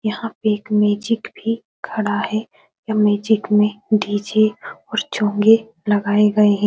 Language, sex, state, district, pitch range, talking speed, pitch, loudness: Hindi, female, Bihar, Supaul, 210-220 Hz, 145 wpm, 210 Hz, -19 LUFS